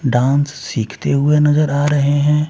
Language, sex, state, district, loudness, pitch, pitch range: Hindi, male, Bihar, Patna, -16 LUFS, 145 Hz, 135-150 Hz